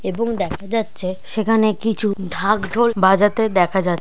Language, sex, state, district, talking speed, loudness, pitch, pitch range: Bengali, male, West Bengal, Dakshin Dinajpur, 150 wpm, -19 LUFS, 210 Hz, 190-225 Hz